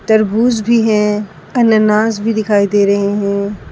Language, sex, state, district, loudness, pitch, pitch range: Hindi, female, Uttar Pradesh, Saharanpur, -13 LUFS, 210 Hz, 200-220 Hz